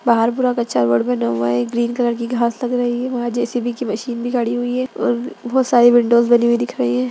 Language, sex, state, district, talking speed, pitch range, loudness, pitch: Hindi, female, Bihar, Jahanabad, 235 wpm, 230-245 Hz, -18 LUFS, 240 Hz